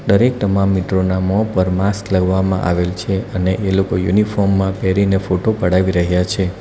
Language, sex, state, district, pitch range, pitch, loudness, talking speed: Gujarati, male, Gujarat, Valsad, 95-100 Hz, 95 Hz, -16 LUFS, 170 wpm